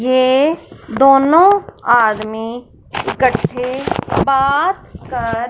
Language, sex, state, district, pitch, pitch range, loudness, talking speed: Hindi, male, Punjab, Fazilka, 255 Hz, 235-280 Hz, -14 LUFS, 65 wpm